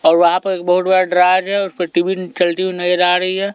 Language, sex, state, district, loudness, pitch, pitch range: Hindi, male, Delhi, New Delhi, -15 LUFS, 180 Hz, 180-190 Hz